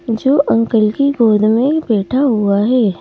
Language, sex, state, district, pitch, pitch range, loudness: Hindi, female, Madhya Pradesh, Bhopal, 230 Hz, 215-270 Hz, -14 LUFS